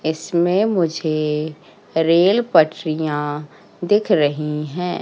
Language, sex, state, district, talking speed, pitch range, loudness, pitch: Hindi, female, Madhya Pradesh, Katni, 85 wpm, 150-175 Hz, -18 LUFS, 160 Hz